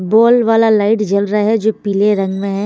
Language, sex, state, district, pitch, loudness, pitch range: Hindi, female, Bihar, Patna, 210 Hz, -13 LUFS, 200-220 Hz